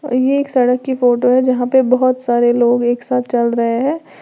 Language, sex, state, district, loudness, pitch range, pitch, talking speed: Hindi, female, Uttar Pradesh, Lalitpur, -15 LUFS, 240-260 Hz, 250 Hz, 230 wpm